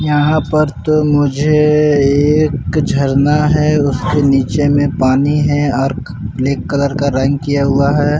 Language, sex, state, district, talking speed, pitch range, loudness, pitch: Hindi, male, Bihar, Patna, 145 wpm, 140-150 Hz, -13 LUFS, 145 Hz